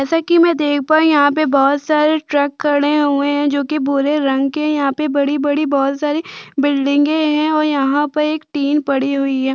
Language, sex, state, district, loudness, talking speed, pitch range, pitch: Hindi, female, Chhattisgarh, Jashpur, -16 LUFS, 215 wpm, 280-305 Hz, 290 Hz